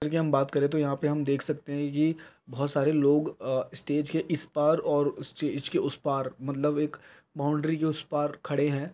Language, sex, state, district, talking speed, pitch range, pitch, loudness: Hindi, male, Chhattisgarh, Raigarh, 195 wpm, 140-155 Hz, 150 Hz, -28 LUFS